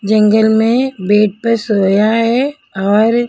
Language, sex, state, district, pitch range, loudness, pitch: Hindi, female, Punjab, Kapurthala, 210-230 Hz, -13 LUFS, 220 Hz